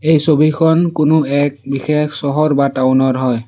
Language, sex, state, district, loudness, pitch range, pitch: Assamese, male, Assam, Sonitpur, -14 LUFS, 135-155 Hz, 145 Hz